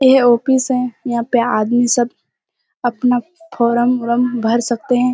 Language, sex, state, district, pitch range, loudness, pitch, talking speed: Hindi, female, Bihar, Kishanganj, 235-260 Hz, -16 LUFS, 245 Hz, 150 wpm